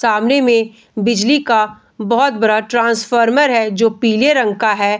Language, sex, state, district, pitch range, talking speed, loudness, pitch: Hindi, female, Bihar, Bhagalpur, 215-240 Hz, 155 wpm, -14 LUFS, 230 Hz